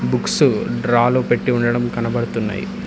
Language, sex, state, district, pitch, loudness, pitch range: Telugu, male, Telangana, Hyderabad, 120 Hz, -18 LUFS, 120-125 Hz